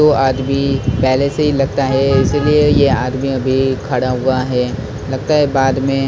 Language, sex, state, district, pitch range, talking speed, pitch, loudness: Hindi, male, Maharashtra, Mumbai Suburban, 130-140 Hz, 180 wpm, 135 Hz, -15 LUFS